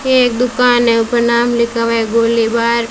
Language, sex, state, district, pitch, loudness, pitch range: Hindi, female, Rajasthan, Bikaner, 235 Hz, -13 LUFS, 230-240 Hz